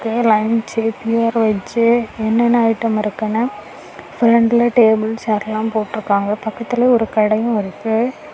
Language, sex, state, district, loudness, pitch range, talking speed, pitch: Tamil, female, Tamil Nadu, Kanyakumari, -16 LUFS, 215-235 Hz, 110 wpm, 225 Hz